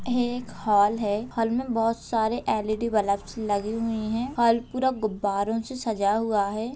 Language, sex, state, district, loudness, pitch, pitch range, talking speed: Hindi, male, Bihar, Gopalganj, -26 LUFS, 225 Hz, 210-235 Hz, 175 wpm